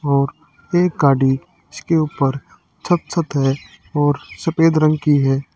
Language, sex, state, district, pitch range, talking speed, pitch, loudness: Hindi, female, Haryana, Charkhi Dadri, 140-165 Hz, 140 wpm, 150 Hz, -18 LUFS